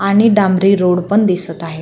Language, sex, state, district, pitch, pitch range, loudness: Marathi, female, Maharashtra, Solapur, 190 Hz, 180-205 Hz, -13 LUFS